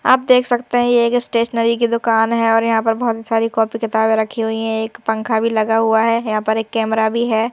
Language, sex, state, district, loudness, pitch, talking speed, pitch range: Hindi, female, Madhya Pradesh, Bhopal, -16 LUFS, 225 Hz, 255 wpm, 220-235 Hz